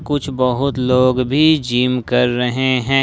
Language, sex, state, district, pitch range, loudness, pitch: Hindi, male, Jharkhand, Ranchi, 125-135 Hz, -16 LUFS, 130 Hz